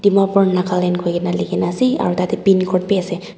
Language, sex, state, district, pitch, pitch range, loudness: Nagamese, female, Nagaland, Dimapur, 185 Hz, 180-195 Hz, -17 LUFS